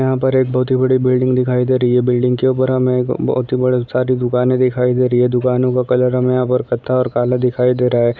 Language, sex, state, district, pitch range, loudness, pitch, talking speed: Hindi, male, Andhra Pradesh, Chittoor, 125-130 Hz, -15 LUFS, 125 Hz, 235 wpm